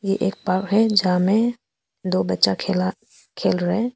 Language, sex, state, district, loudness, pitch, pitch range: Hindi, female, Arunachal Pradesh, Papum Pare, -21 LUFS, 190 Hz, 185-220 Hz